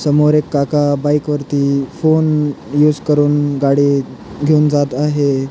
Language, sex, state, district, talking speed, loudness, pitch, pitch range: Marathi, male, Maharashtra, Pune, 130 wpm, -15 LUFS, 145 Hz, 140-150 Hz